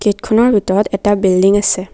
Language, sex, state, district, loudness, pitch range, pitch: Assamese, female, Assam, Kamrup Metropolitan, -13 LUFS, 195-210 Hz, 205 Hz